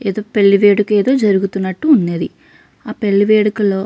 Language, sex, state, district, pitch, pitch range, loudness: Telugu, female, Andhra Pradesh, Krishna, 205 Hz, 195-215 Hz, -14 LUFS